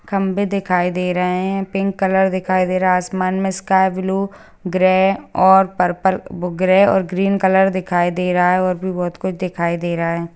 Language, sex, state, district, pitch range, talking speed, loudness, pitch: Hindi, female, Bihar, Gaya, 180-190 Hz, 190 wpm, -17 LUFS, 185 Hz